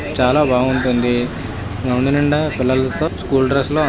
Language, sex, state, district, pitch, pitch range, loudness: Telugu, male, Andhra Pradesh, Visakhapatnam, 130 Hz, 120-140 Hz, -17 LUFS